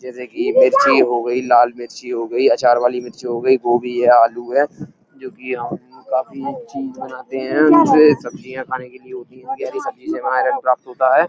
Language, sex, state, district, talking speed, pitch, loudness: Hindi, male, Uttar Pradesh, Etah, 205 wpm, 130 Hz, -17 LUFS